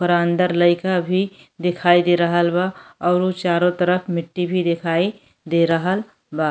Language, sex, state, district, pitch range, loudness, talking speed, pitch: Bhojpuri, female, Uttar Pradesh, Deoria, 170-180 Hz, -19 LUFS, 155 wpm, 175 Hz